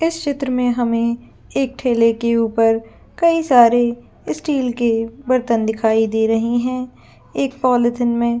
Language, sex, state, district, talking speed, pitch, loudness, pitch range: Hindi, female, Jharkhand, Jamtara, 145 wpm, 240 Hz, -18 LUFS, 230-255 Hz